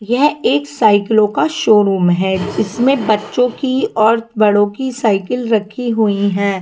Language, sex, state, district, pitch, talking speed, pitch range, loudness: Hindi, female, Punjab, Kapurthala, 220 Hz, 145 wpm, 205-250 Hz, -14 LUFS